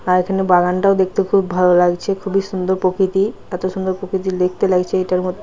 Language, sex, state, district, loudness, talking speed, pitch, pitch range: Bengali, female, West Bengal, Paschim Medinipur, -17 LUFS, 185 wpm, 185 Hz, 180-195 Hz